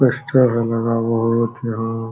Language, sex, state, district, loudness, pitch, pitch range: Hindi, male, Uttar Pradesh, Jalaun, -18 LUFS, 115 Hz, 115-120 Hz